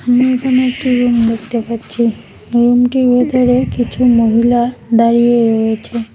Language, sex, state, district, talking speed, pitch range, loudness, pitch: Bengali, female, West Bengal, Cooch Behar, 115 wpm, 230-250 Hz, -13 LUFS, 240 Hz